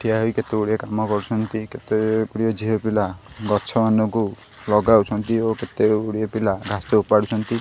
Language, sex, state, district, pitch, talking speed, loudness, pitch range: Odia, male, Odisha, Khordha, 110 Hz, 110 wpm, -21 LUFS, 105-110 Hz